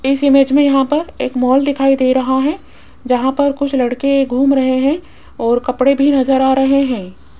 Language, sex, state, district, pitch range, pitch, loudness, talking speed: Hindi, female, Rajasthan, Jaipur, 260-275 Hz, 270 Hz, -14 LUFS, 200 wpm